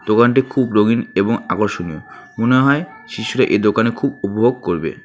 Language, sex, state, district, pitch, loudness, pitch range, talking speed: Bengali, male, West Bengal, Alipurduar, 115 Hz, -17 LUFS, 105-130 Hz, 155 wpm